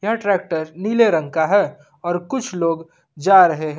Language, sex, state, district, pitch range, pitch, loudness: Hindi, male, Jharkhand, Ranchi, 160-200 Hz, 175 Hz, -18 LUFS